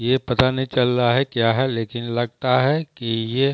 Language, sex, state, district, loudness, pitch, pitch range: Hindi, male, Bihar, Jamui, -20 LUFS, 125 Hz, 120-130 Hz